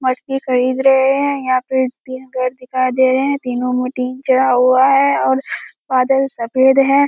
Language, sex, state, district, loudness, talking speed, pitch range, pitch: Hindi, female, Bihar, Kishanganj, -15 LUFS, 180 wpm, 255-270 Hz, 260 Hz